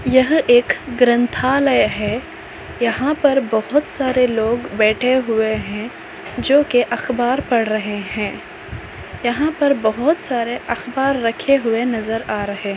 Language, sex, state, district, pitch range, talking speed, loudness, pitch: Hindi, female, Maharashtra, Nagpur, 220-270 Hz, 130 wpm, -18 LUFS, 245 Hz